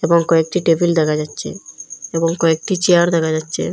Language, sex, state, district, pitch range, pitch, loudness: Bengali, female, Assam, Hailakandi, 160-170 Hz, 165 Hz, -16 LUFS